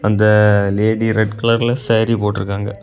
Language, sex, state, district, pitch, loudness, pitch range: Tamil, male, Tamil Nadu, Kanyakumari, 105 Hz, -15 LUFS, 105-115 Hz